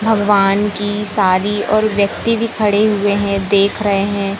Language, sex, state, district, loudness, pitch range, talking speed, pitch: Hindi, male, Madhya Pradesh, Katni, -15 LUFS, 200-210 Hz, 165 wpm, 205 Hz